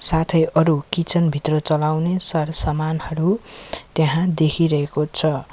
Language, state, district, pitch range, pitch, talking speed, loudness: Nepali, West Bengal, Darjeeling, 155-165 Hz, 160 Hz, 100 wpm, -19 LUFS